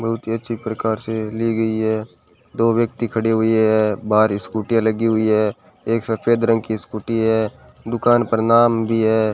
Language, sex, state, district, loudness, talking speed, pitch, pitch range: Hindi, male, Rajasthan, Bikaner, -19 LUFS, 185 wpm, 110 Hz, 110-115 Hz